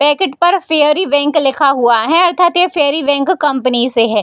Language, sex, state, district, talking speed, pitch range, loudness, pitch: Hindi, female, Bihar, Darbhanga, 200 wpm, 270-345 Hz, -12 LUFS, 290 Hz